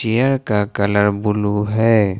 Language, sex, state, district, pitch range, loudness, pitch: Hindi, male, Jharkhand, Ranchi, 105-110 Hz, -17 LUFS, 105 Hz